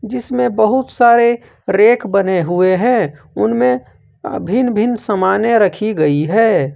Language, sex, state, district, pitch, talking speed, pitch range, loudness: Hindi, male, Jharkhand, Ranchi, 210 Hz, 125 wpm, 170-235 Hz, -14 LUFS